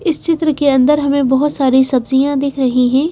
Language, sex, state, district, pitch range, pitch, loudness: Hindi, female, Madhya Pradesh, Bhopal, 265-295 Hz, 280 Hz, -13 LUFS